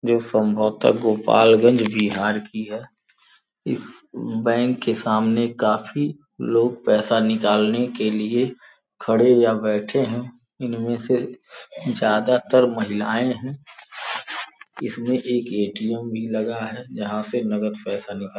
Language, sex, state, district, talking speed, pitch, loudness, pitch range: Hindi, male, Uttar Pradesh, Gorakhpur, 125 wpm, 115 Hz, -21 LUFS, 110-120 Hz